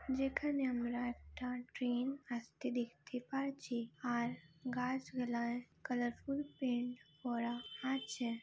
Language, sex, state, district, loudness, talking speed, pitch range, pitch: Bengali, female, West Bengal, Dakshin Dinajpur, -41 LUFS, 100 wpm, 240-265 Hz, 250 Hz